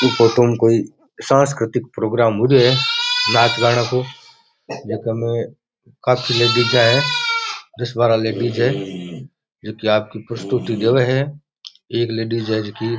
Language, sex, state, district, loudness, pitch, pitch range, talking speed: Rajasthani, male, Rajasthan, Nagaur, -17 LUFS, 120 Hz, 115-130 Hz, 150 wpm